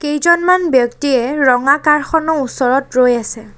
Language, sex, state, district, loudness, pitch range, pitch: Assamese, female, Assam, Sonitpur, -13 LUFS, 250-300 Hz, 275 Hz